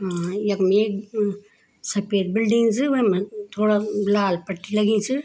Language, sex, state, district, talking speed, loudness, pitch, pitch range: Garhwali, female, Uttarakhand, Tehri Garhwal, 135 wpm, -22 LUFS, 205 Hz, 200-215 Hz